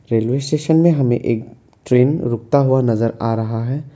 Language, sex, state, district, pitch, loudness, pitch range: Hindi, male, Assam, Kamrup Metropolitan, 120 Hz, -17 LUFS, 115-140 Hz